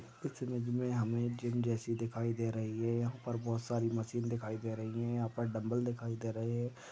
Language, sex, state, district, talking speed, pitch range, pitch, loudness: Hindi, male, Maharashtra, Sindhudurg, 235 wpm, 115-120 Hz, 115 Hz, -37 LUFS